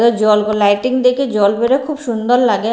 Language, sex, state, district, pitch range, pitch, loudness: Bengali, female, Bihar, Katihar, 215-255 Hz, 235 Hz, -14 LUFS